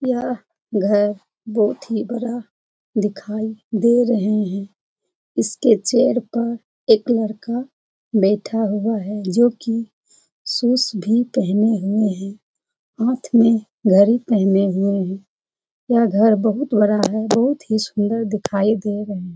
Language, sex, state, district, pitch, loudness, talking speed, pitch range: Hindi, female, Bihar, Jamui, 220 Hz, -19 LUFS, 130 wpm, 205-235 Hz